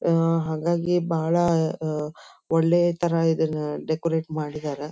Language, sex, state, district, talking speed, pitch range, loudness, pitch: Kannada, female, Karnataka, Dharwad, 110 wpm, 155-170 Hz, -24 LUFS, 165 Hz